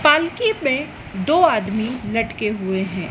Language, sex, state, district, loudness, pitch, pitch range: Hindi, female, Madhya Pradesh, Dhar, -20 LUFS, 230 Hz, 200-305 Hz